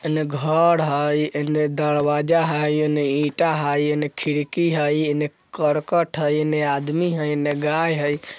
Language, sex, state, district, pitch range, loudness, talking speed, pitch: Bajjika, male, Bihar, Vaishali, 145-155 Hz, -21 LUFS, 150 wpm, 150 Hz